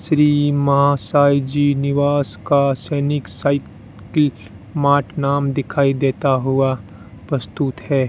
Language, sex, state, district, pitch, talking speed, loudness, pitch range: Hindi, male, Rajasthan, Bikaner, 140 Hz, 120 wpm, -18 LUFS, 130-145 Hz